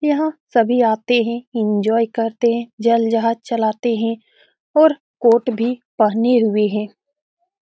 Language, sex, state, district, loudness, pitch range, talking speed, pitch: Hindi, female, Bihar, Saran, -18 LUFS, 225-250 Hz, 135 wpm, 235 Hz